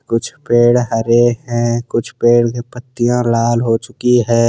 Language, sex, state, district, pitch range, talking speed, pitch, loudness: Hindi, male, Jharkhand, Deoghar, 115-120 Hz, 160 wpm, 120 Hz, -14 LUFS